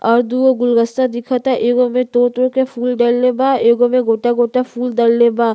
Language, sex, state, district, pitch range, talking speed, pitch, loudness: Bhojpuri, female, Uttar Pradesh, Gorakhpur, 240-255 Hz, 175 wpm, 245 Hz, -15 LUFS